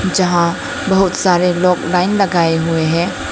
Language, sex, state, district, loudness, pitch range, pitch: Hindi, female, Arunachal Pradesh, Lower Dibang Valley, -14 LUFS, 170-190 Hz, 180 Hz